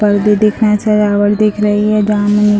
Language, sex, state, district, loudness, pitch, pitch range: Hindi, female, Bihar, Muzaffarpur, -12 LUFS, 210 Hz, 205-210 Hz